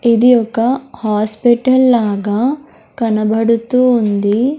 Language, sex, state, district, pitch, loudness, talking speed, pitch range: Telugu, male, Andhra Pradesh, Sri Satya Sai, 235 Hz, -14 LUFS, 80 wpm, 215-250 Hz